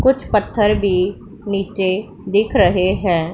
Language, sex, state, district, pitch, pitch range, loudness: Hindi, female, Punjab, Pathankot, 200 Hz, 185-210 Hz, -17 LUFS